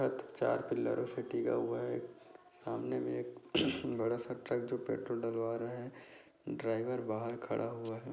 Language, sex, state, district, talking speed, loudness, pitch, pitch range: Hindi, male, Andhra Pradesh, Chittoor, 160 wpm, -38 LUFS, 115 Hz, 110-120 Hz